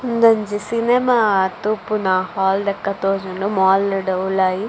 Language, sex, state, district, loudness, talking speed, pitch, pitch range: Tulu, female, Karnataka, Dakshina Kannada, -18 LUFS, 115 wpm, 200 Hz, 190-215 Hz